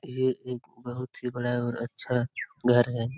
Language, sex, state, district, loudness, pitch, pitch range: Hindi, male, Bihar, Lakhisarai, -29 LUFS, 125 Hz, 120-125 Hz